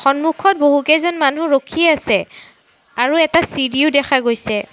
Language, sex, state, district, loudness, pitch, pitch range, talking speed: Assamese, female, Assam, Sonitpur, -15 LUFS, 285 Hz, 265-320 Hz, 125 wpm